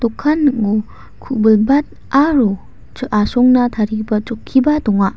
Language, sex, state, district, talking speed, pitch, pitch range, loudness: Garo, female, Meghalaya, West Garo Hills, 95 wpm, 235 Hz, 215-270 Hz, -15 LUFS